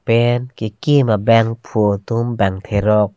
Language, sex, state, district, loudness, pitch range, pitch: Karbi, male, Assam, Karbi Anglong, -17 LUFS, 105-120 Hz, 115 Hz